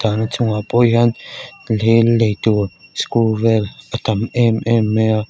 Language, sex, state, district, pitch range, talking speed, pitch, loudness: Mizo, female, Mizoram, Aizawl, 110-115 Hz, 160 wpm, 110 Hz, -16 LUFS